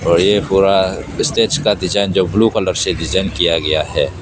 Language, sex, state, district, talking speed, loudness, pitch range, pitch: Hindi, male, Arunachal Pradesh, Papum Pare, 200 wpm, -15 LUFS, 90-105 Hz, 95 Hz